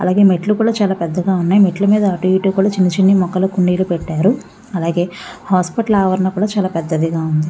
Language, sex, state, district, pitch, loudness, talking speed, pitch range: Telugu, female, Andhra Pradesh, Visakhapatnam, 190 Hz, -15 LUFS, 175 wpm, 180-200 Hz